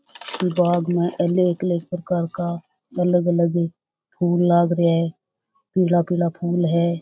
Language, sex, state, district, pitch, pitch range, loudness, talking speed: Rajasthani, female, Rajasthan, Churu, 175 Hz, 170-180 Hz, -21 LUFS, 145 wpm